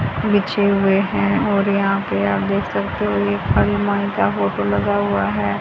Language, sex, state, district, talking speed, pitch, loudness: Hindi, female, Haryana, Charkhi Dadri, 180 wpm, 105 Hz, -18 LUFS